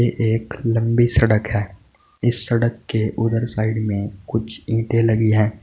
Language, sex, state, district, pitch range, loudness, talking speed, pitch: Hindi, male, Uttar Pradesh, Saharanpur, 110-115 Hz, -20 LUFS, 150 wpm, 115 Hz